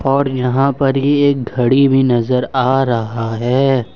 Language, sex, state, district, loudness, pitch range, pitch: Hindi, male, Jharkhand, Ranchi, -15 LUFS, 120-135 Hz, 130 Hz